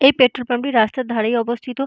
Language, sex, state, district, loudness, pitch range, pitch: Bengali, female, West Bengal, North 24 Parganas, -18 LUFS, 235-255 Hz, 250 Hz